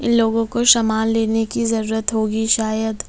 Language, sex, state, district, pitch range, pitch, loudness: Hindi, female, Bihar, Kaimur, 220-230 Hz, 225 Hz, -18 LUFS